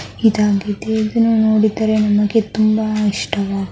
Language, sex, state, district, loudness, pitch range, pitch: Kannada, male, Karnataka, Mysore, -16 LUFS, 205-220 Hz, 215 Hz